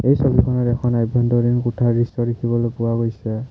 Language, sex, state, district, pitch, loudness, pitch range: Assamese, male, Assam, Kamrup Metropolitan, 120 Hz, -19 LUFS, 120-125 Hz